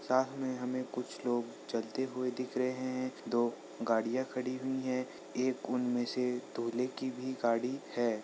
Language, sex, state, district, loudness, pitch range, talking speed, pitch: Hindi, male, Uttar Pradesh, Ghazipur, -35 LUFS, 120-130 Hz, 160 wpm, 125 Hz